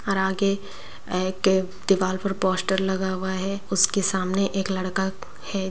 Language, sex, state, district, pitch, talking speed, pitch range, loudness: Hindi, female, Bihar, Begusarai, 190 Hz, 145 wpm, 190-195 Hz, -24 LUFS